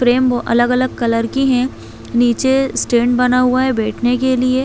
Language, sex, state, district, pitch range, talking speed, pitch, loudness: Hindi, female, Chhattisgarh, Bastar, 240-260 Hz, 205 wpm, 250 Hz, -15 LUFS